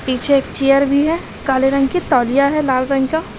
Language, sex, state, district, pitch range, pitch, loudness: Hindi, female, Bihar, Madhepura, 265-285 Hz, 275 Hz, -15 LUFS